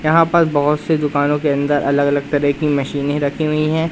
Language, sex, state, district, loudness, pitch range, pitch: Hindi, male, Madhya Pradesh, Katni, -17 LUFS, 145-155 Hz, 145 Hz